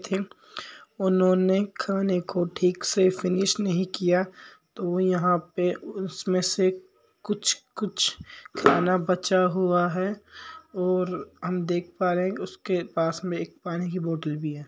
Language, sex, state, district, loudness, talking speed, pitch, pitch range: Marwari, male, Rajasthan, Nagaur, -25 LUFS, 125 wpm, 185 Hz, 180-190 Hz